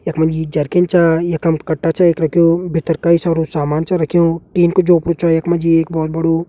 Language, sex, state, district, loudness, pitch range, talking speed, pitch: Garhwali, male, Uttarakhand, Uttarkashi, -15 LUFS, 160-170 Hz, 220 wpm, 165 Hz